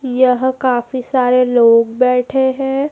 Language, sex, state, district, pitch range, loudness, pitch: Hindi, female, Madhya Pradesh, Dhar, 250-260 Hz, -14 LUFS, 255 Hz